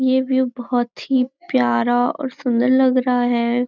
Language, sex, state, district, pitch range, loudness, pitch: Hindi, female, Maharashtra, Nagpur, 245-260 Hz, -19 LUFS, 250 Hz